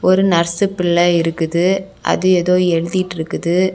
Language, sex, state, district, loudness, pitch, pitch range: Tamil, female, Tamil Nadu, Kanyakumari, -16 LUFS, 180 Hz, 170-185 Hz